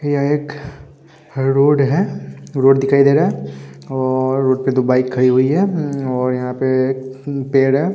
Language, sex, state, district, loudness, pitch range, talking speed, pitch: Hindi, male, Bihar, Vaishali, -16 LUFS, 130-140 Hz, 175 wpm, 135 Hz